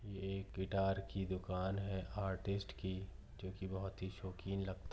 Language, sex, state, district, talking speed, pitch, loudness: Hindi, female, Maharashtra, Pune, 170 wpm, 95 Hz, -43 LUFS